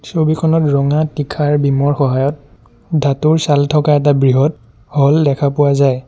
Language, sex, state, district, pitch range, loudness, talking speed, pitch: Assamese, male, Assam, Sonitpur, 140-150 Hz, -14 LUFS, 140 wpm, 145 Hz